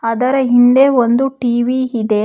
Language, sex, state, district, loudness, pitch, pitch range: Kannada, female, Karnataka, Bangalore, -13 LUFS, 245 Hz, 235-260 Hz